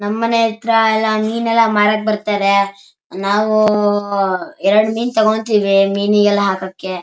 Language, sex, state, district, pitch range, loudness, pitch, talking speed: Kannada, male, Karnataka, Shimoga, 200-220 Hz, -15 LUFS, 210 Hz, 120 wpm